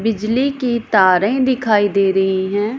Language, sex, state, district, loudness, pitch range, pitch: Hindi, female, Punjab, Pathankot, -16 LUFS, 195-245 Hz, 215 Hz